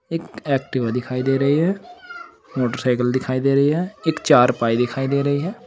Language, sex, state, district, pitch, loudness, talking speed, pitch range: Hindi, male, Uttar Pradesh, Saharanpur, 135 Hz, -20 LUFS, 180 wpm, 125-165 Hz